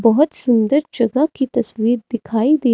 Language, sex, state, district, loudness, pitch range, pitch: Hindi, female, Himachal Pradesh, Shimla, -17 LUFS, 230-285 Hz, 245 Hz